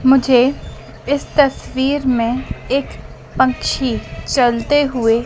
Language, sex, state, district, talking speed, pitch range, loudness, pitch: Hindi, female, Madhya Pradesh, Dhar, 90 wpm, 245-275 Hz, -16 LUFS, 260 Hz